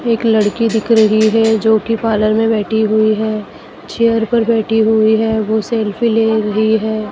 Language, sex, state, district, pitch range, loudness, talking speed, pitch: Hindi, female, Madhya Pradesh, Dhar, 215-225 Hz, -14 LUFS, 185 wpm, 220 Hz